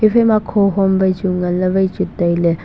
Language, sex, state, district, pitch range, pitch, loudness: Wancho, male, Arunachal Pradesh, Longding, 180-200 Hz, 190 Hz, -16 LUFS